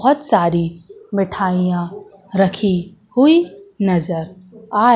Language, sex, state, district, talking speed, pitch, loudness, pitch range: Hindi, female, Madhya Pradesh, Katni, 85 wpm, 195 Hz, -17 LUFS, 180-215 Hz